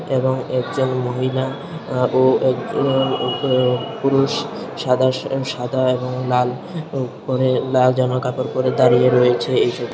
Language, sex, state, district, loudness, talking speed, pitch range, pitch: Bengali, male, Tripura, Unakoti, -19 LUFS, 125 wpm, 125-135 Hz, 130 Hz